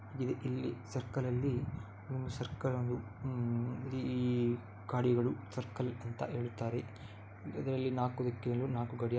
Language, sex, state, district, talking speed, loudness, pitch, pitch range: Kannada, male, Karnataka, Dakshina Kannada, 110 wpm, -37 LUFS, 125 Hz, 120-130 Hz